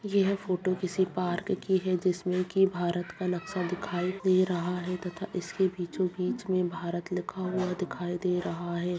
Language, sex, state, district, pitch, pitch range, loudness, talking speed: Hindi, female, Bihar, Bhagalpur, 180 Hz, 175-185 Hz, -30 LUFS, 175 wpm